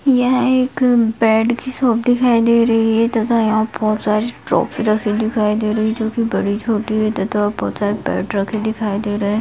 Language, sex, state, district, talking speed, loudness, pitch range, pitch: Hindi, female, Bihar, Darbhanga, 200 wpm, -17 LUFS, 215-235 Hz, 220 Hz